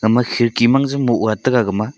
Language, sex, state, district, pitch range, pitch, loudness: Wancho, male, Arunachal Pradesh, Longding, 110-130 Hz, 120 Hz, -16 LUFS